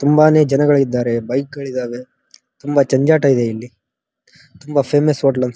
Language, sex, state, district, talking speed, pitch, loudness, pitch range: Kannada, male, Karnataka, Dharwad, 160 wpm, 140 Hz, -16 LUFS, 125-145 Hz